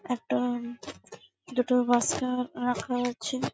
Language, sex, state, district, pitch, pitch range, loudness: Bengali, female, West Bengal, Malda, 245 Hz, 240-250 Hz, -28 LUFS